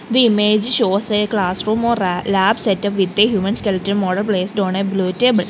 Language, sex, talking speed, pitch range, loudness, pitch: English, female, 205 wpm, 190-215 Hz, -17 LUFS, 200 Hz